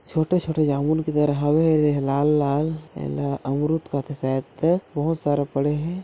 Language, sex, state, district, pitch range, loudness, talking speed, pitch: Chhattisgarhi, male, Chhattisgarh, Korba, 140-160 Hz, -23 LUFS, 180 wpm, 150 Hz